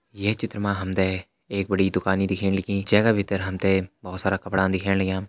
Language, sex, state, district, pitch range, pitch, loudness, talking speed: Hindi, male, Uttarakhand, Uttarkashi, 95-100 Hz, 95 Hz, -24 LUFS, 225 wpm